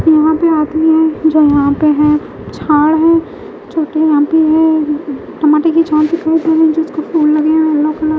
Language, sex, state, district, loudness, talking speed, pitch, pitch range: Hindi, female, Bihar, West Champaran, -12 LUFS, 185 wpm, 315 Hz, 305-320 Hz